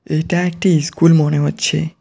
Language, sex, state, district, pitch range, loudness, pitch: Bengali, male, West Bengal, Cooch Behar, 155-175 Hz, -15 LUFS, 160 Hz